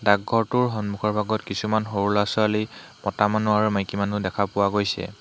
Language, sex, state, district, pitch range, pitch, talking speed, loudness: Assamese, male, Assam, Hailakandi, 100-110 Hz, 105 Hz, 175 wpm, -23 LUFS